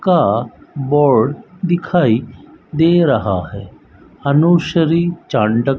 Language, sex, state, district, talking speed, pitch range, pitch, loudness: Hindi, male, Rajasthan, Bikaner, 85 wpm, 135-175 Hz, 160 Hz, -15 LUFS